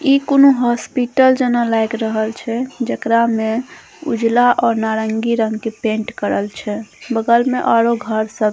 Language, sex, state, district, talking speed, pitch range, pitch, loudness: Maithili, female, Bihar, Saharsa, 160 wpm, 220-245 Hz, 230 Hz, -16 LUFS